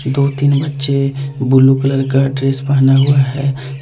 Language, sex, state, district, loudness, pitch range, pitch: Hindi, male, Jharkhand, Deoghar, -14 LUFS, 135-140 Hz, 135 Hz